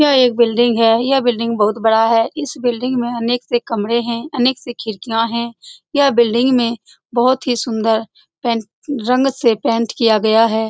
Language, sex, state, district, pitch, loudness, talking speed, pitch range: Hindi, female, Bihar, Saran, 235 Hz, -16 LUFS, 185 wpm, 225-250 Hz